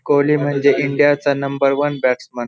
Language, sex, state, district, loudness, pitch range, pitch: Marathi, male, Maharashtra, Pune, -16 LUFS, 140-145 Hz, 140 Hz